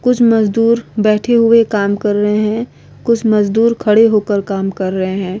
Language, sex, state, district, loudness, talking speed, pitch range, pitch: Hindi, female, Bihar, Vaishali, -13 LUFS, 200 wpm, 205-230 Hz, 215 Hz